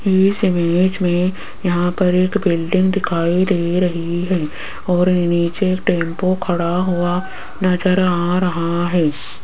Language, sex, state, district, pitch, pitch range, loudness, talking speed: Hindi, female, Rajasthan, Jaipur, 180 Hz, 170-185 Hz, -17 LUFS, 125 wpm